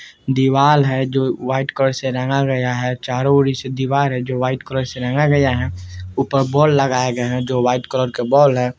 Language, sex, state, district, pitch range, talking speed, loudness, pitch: Bajjika, male, Bihar, Vaishali, 125-135 Hz, 225 wpm, -17 LUFS, 130 Hz